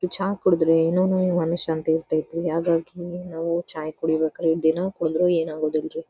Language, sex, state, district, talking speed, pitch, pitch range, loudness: Kannada, female, Karnataka, Dharwad, 130 wpm, 165 Hz, 160-175 Hz, -23 LUFS